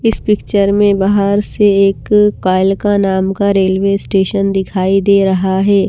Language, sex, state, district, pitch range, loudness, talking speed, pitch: Hindi, female, Himachal Pradesh, Shimla, 195-205 Hz, -12 LUFS, 155 wpm, 195 Hz